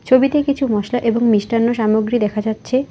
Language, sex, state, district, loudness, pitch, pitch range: Bengali, female, West Bengal, Alipurduar, -17 LUFS, 235 Hz, 220-255 Hz